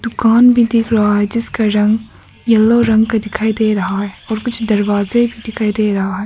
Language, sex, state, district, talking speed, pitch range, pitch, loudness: Hindi, female, Arunachal Pradesh, Papum Pare, 210 wpm, 210-230 Hz, 220 Hz, -14 LUFS